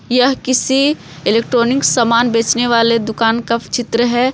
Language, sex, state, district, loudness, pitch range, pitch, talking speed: Hindi, female, Jharkhand, Palamu, -14 LUFS, 230-255 Hz, 235 Hz, 150 wpm